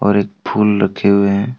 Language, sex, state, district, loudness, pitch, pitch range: Hindi, male, Jharkhand, Deoghar, -15 LUFS, 100 Hz, 100-105 Hz